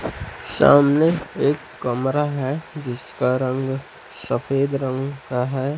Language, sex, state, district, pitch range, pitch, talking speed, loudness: Hindi, male, Chhattisgarh, Raipur, 130-145 Hz, 135 Hz, 105 wpm, -21 LUFS